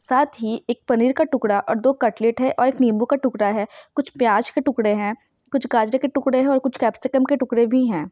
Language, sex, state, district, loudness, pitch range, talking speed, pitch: Hindi, female, Jharkhand, Sahebganj, -20 LUFS, 230-270 Hz, 250 wpm, 255 Hz